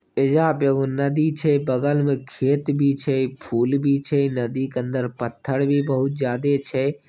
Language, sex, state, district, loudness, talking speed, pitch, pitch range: Maithili, male, Bihar, Begusarai, -22 LUFS, 180 wpm, 140 Hz, 130-145 Hz